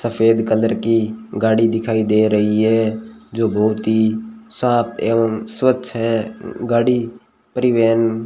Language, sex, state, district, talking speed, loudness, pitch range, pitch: Hindi, male, Rajasthan, Bikaner, 130 wpm, -17 LUFS, 110-115 Hz, 115 Hz